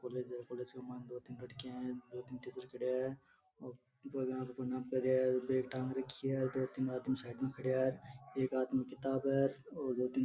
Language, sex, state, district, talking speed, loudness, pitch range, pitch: Marwari, male, Rajasthan, Nagaur, 205 wpm, -39 LUFS, 125-130 Hz, 130 Hz